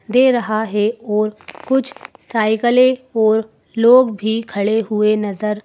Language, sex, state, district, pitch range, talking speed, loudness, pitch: Hindi, female, Madhya Pradesh, Bhopal, 215-245 Hz, 140 wpm, -16 LUFS, 220 Hz